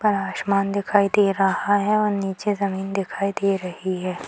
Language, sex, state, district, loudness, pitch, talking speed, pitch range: Hindi, female, Bihar, Purnia, -22 LUFS, 200 Hz, 180 wpm, 195-205 Hz